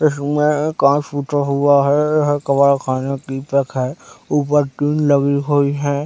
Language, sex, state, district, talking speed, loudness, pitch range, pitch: Hindi, male, Chhattisgarh, Raigarh, 170 wpm, -17 LUFS, 140-145 Hz, 145 Hz